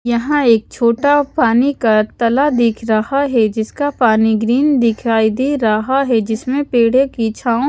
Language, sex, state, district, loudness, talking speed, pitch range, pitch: Hindi, female, Chandigarh, Chandigarh, -15 LUFS, 165 wpm, 225-275 Hz, 235 Hz